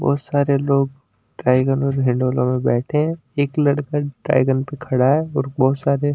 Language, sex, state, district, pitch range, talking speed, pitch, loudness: Hindi, male, Delhi, New Delhi, 130-145 Hz, 185 wpm, 140 Hz, -19 LUFS